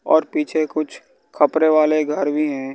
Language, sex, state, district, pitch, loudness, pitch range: Hindi, male, Bihar, West Champaran, 150 Hz, -19 LUFS, 150-155 Hz